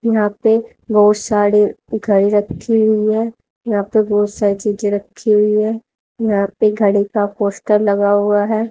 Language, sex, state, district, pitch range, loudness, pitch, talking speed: Hindi, female, Haryana, Rohtak, 205-220 Hz, -16 LUFS, 210 Hz, 165 wpm